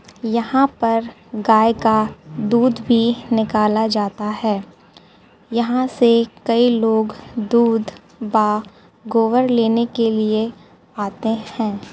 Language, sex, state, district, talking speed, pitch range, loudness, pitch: Hindi, female, Uttar Pradesh, Gorakhpur, 105 wpm, 215-235 Hz, -18 LUFS, 225 Hz